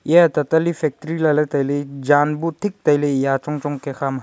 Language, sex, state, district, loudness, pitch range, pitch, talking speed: Wancho, male, Arunachal Pradesh, Longding, -19 LUFS, 140-160 Hz, 150 Hz, 225 wpm